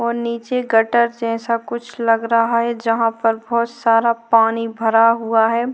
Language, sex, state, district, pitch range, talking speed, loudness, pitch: Hindi, female, Chhattisgarh, Korba, 225-235 Hz, 165 wpm, -17 LUFS, 230 Hz